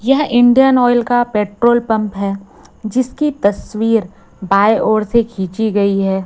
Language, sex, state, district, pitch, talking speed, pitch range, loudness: Hindi, female, Chhattisgarh, Raipur, 220 Hz, 145 wpm, 200-245 Hz, -14 LUFS